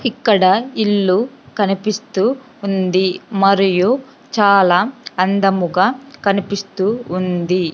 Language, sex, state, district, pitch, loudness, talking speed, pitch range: Telugu, female, Andhra Pradesh, Sri Satya Sai, 200 Hz, -16 LUFS, 70 wpm, 185-235 Hz